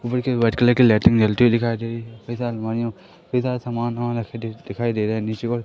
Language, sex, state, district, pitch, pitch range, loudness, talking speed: Hindi, male, Madhya Pradesh, Katni, 115 Hz, 115-120 Hz, -21 LUFS, 255 wpm